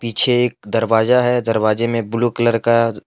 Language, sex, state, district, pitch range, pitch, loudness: Hindi, male, Jharkhand, Deoghar, 115-120 Hz, 115 Hz, -16 LUFS